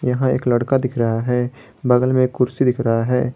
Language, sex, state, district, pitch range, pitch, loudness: Hindi, male, Jharkhand, Garhwa, 120-130 Hz, 125 Hz, -18 LUFS